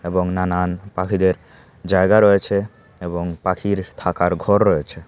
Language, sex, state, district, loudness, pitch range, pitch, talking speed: Bengali, male, Tripura, Unakoti, -19 LUFS, 90-100 Hz, 90 Hz, 120 wpm